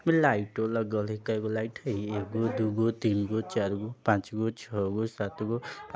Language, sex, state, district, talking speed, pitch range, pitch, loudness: Bajjika, male, Bihar, Vaishali, 170 wpm, 105-115 Hz, 110 Hz, -30 LUFS